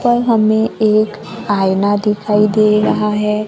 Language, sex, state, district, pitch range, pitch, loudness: Hindi, female, Maharashtra, Gondia, 210-215 Hz, 215 Hz, -14 LUFS